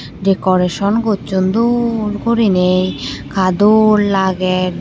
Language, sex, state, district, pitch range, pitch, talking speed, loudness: Chakma, female, Tripura, Unakoti, 185-215 Hz, 195 Hz, 85 wpm, -14 LUFS